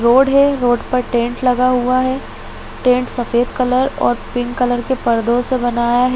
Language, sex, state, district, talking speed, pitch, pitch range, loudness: Hindi, female, Chhattisgarh, Bilaspur, 185 wpm, 250 Hz, 240-255 Hz, -16 LUFS